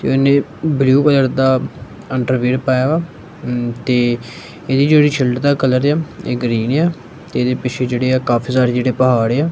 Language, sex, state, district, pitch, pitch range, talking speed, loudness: Punjabi, male, Punjab, Kapurthala, 130 Hz, 125-140 Hz, 175 wpm, -16 LUFS